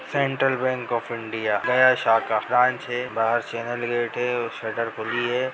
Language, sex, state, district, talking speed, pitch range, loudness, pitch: Hindi, male, Bihar, Jahanabad, 175 wpm, 115-125 Hz, -23 LUFS, 120 Hz